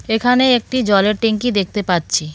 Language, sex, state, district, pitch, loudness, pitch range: Bengali, female, West Bengal, Cooch Behar, 215 Hz, -16 LUFS, 195-245 Hz